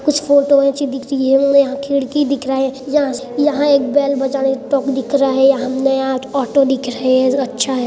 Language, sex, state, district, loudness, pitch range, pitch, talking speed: Hindi, male, Chhattisgarh, Sarguja, -15 LUFS, 265-280 Hz, 270 Hz, 245 wpm